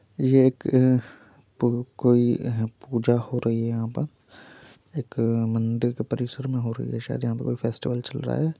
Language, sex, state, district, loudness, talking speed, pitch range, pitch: Hindi, male, Uttar Pradesh, Muzaffarnagar, -25 LUFS, 190 wpm, 115-130 Hz, 120 Hz